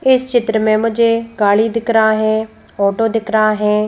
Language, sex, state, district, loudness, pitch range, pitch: Hindi, female, Madhya Pradesh, Bhopal, -15 LUFS, 215-230 Hz, 220 Hz